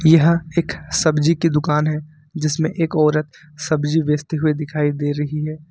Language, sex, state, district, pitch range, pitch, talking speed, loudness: Hindi, male, Jharkhand, Ranchi, 150-160 Hz, 155 Hz, 170 wpm, -19 LUFS